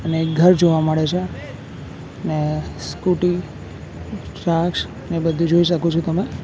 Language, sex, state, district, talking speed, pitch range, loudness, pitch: Gujarati, male, Gujarat, Valsad, 130 wpm, 155-175 Hz, -19 LUFS, 165 Hz